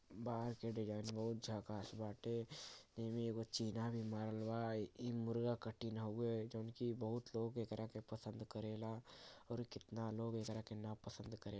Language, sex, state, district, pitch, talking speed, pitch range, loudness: Bhojpuri, male, Uttar Pradesh, Gorakhpur, 110 Hz, 165 wpm, 110-115 Hz, -46 LUFS